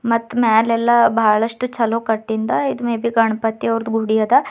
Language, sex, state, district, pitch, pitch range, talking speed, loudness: Kannada, female, Karnataka, Bidar, 230 Hz, 220-235 Hz, 145 wpm, -17 LUFS